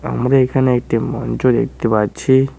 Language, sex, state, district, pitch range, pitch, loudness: Bengali, male, West Bengal, Cooch Behar, 115-135 Hz, 130 Hz, -16 LUFS